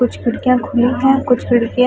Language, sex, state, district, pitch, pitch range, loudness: Hindi, female, Chhattisgarh, Balrampur, 250 Hz, 245-255 Hz, -15 LUFS